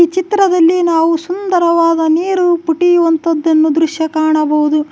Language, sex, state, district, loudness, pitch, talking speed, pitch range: Kannada, female, Karnataka, Koppal, -12 LUFS, 330 Hz, 85 wpm, 320-350 Hz